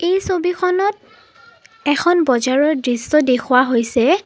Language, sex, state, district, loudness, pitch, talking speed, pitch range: Assamese, female, Assam, Sonitpur, -16 LUFS, 340 Hz, 100 wpm, 255-375 Hz